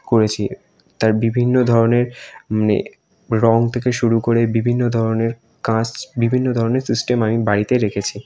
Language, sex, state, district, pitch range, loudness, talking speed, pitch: Bengali, male, West Bengal, North 24 Parganas, 110-120 Hz, -18 LUFS, 140 wpm, 115 Hz